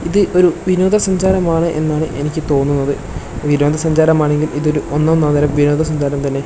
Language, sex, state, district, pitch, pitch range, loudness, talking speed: Malayalam, male, Kerala, Kasaragod, 150 Hz, 145-165 Hz, -15 LUFS, 150 wpm